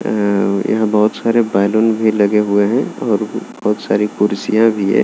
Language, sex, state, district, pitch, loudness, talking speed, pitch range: Hindi, male, Maharashtra, Aurangabad, 105 Hz, -15 LUFS, 180 wpm, 100-110 Hz